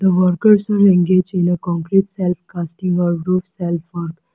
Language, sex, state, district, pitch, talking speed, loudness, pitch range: English, female, Arunachal Pradesh, Lower Dibang Valley, 180 Hz, 140 wpm, -17 LUFS, 175-190 Hz